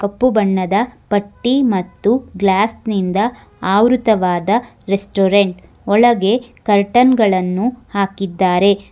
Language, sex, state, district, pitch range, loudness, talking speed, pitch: Kannada, female, Karnataka, Bangalore, 195-230 Hz, -16 LUFS, 80 wpm, 200 Hz